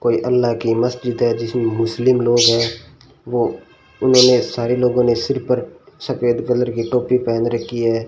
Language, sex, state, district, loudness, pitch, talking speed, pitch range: Hindi, male, Rajasthan, Bikaner, -17 LUFS, 120 Hz, 170 wpm, 115-125 Hz